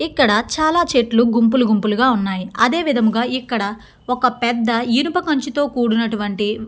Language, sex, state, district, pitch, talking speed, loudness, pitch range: Telugu, female, Andhra Pradesh, Chittoor, 240 Hz, 125 wpm, -17 LUFS, 220-265 Hz